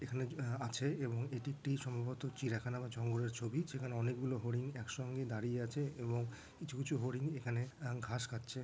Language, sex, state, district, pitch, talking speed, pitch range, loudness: Bengali, male, West Bengal, Dakshin Dinajpur, 125 Hz, 175 wpm, 120-135 Hz, -41 LUFS